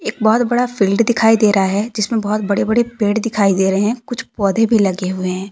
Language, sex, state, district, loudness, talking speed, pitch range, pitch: Hindi, female, Jharkhand, Deoghar, -16 LUFS, 230 wpm, 195-230 Hz, 215 Hz